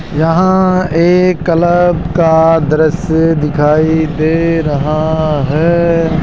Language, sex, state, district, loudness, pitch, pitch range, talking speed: Hindi, male, Rajasthan, Jaipur, -11 LUFS, 165 Hz, 155-170 Hz, 85 wpm